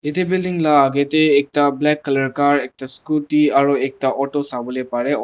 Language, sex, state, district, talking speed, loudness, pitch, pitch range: Nagamese, male, Nagaland, Dimapur, 195 wpm, -17 LUFS, 140 Hz, 135-150 Hz